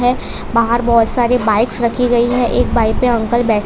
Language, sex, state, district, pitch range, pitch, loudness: Hindi, female, Gujarat, Valsad, 230-245 Hz, 235 Hz, -14 LUFS